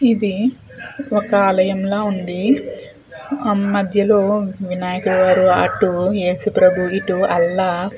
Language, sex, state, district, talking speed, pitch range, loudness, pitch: Telugu, female, Andhra Pradesh, Chittoor, 100 wpm, 185-210 Hz, -17 LUFS, 195 Hz